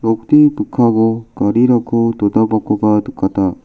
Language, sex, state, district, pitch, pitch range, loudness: Garo, male, Meghalaya, South Garo Hills, 110 Hz, 105-115 Hz, -14 LUFS